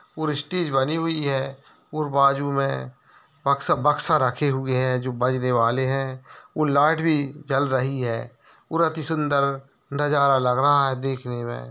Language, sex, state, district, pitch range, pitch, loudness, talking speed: Hindi, male, Bihar, Lakhisarai, 130-150 Hz, 140 Hz, -23 LUFS, 165 wpm